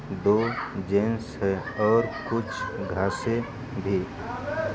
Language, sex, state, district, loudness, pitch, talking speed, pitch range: Hindi, male, Uttar Pradesh, Varanasi, -27 LUFS, 110 Hz, 100 wpm, 95-115 Hz